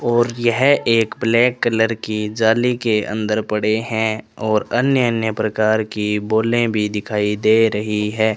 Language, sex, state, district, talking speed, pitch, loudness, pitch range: Hindi, male, Rajasthan, Bikaner, 160 wpm, 110 Hz, -18 LUFS, 105-115 Hz